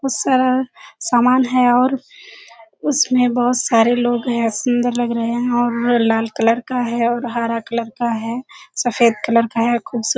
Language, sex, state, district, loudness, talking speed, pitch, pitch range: Hindi, female, Bihar, Kishanganj, -17 LUFS, 175 wpm, 240 Hz, 230-255 Hz